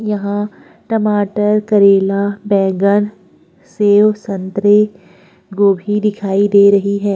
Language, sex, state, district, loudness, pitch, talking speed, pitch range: Hindi, female, Uttarakhand, Tehri Garhwal, -14 LUFS, 200 Hz, 90 wpm, 195-210 Hz